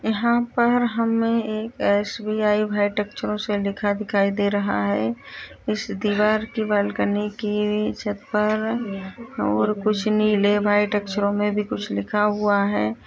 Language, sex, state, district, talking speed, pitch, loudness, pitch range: Hindi, female, Maharashtra, Dhule, 125 wpm, 210 Hz, -22 LUFS, 200-215 Hz